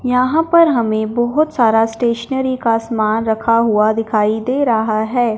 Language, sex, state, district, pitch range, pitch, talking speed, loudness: Hindi, male, Punjab, Fazilka, 220-250 Hz, 230 Hz, 155 wpm, -15 LUFS